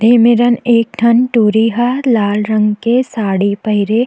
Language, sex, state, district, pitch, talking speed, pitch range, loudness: Chhattisgarhi, female, Chhattisgarh, Jashpur, 230 Hz, 160 wpm, 210-240 Hz, -12 LUFS